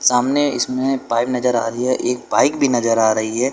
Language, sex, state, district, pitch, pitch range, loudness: Hindi, male, Uttar Pradesh, Lucknow, 125 Hz, 115-130 Hz, -18 LUFS